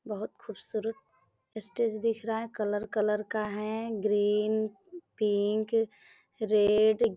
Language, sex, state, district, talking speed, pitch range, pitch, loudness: Hindi, female, Bihar, Gopalganj, 125 wpm, 210-225 Hz, 215 Hz, -30 LUFS